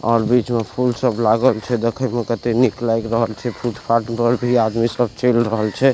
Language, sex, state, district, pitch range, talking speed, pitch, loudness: Maithili, male, Bihar, Supaul, 115-125 Hz, 240 wpm, 120 Hz, -18 LUFS